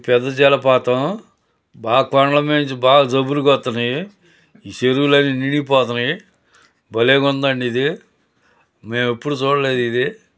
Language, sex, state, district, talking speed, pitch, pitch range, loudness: Telugu, male, Andhra Pradesh, Guntur, 110 wpm, 135 Hz, 125-145 Hz, -17 LUFS